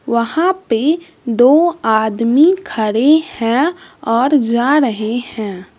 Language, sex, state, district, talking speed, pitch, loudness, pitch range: Hindi, male, Bihar, West Champaran, 105 wpm, 255 Hz, -14 LUFS, 230-320 Hz